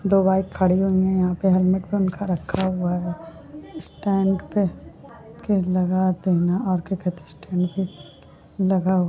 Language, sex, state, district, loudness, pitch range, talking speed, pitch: Hindi, female, Chhattisgarh, Balrampur, -22 LUFS, 180-190 Hz, 150 wpm, 185 Hz